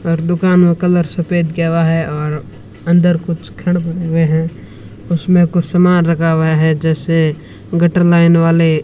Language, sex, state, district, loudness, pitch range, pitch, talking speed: Hindi, male, Rajasthan, Bikaner, -13 LUFS, 160-175 Hz, 165 Hz, 175 wpm